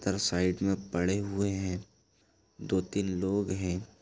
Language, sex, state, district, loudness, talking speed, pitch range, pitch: Hindi, female, Chhattisgarh, Bastar, -31 LUFS, 135 wpm, 90-100 Hz, 95 Hz